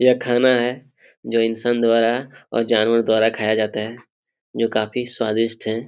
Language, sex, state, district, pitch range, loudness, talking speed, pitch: Hindi, male, Jharkhand, Jamtara, 110-125 Hz, -19 LUFS, 165 wpm, 115 Hz